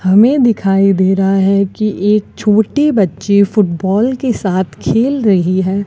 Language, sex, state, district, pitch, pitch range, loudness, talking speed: Hindi, female, Rajasthan, Bikaner, 200 Hz, 190-215 Hz, -13 LUFS, 155 wpm